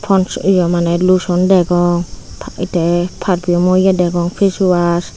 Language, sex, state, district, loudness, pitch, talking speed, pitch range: Chakma, female, Tripura, Unakoti, -14 LUFS, 180 Hz, 125 wpm, 175-185 Hz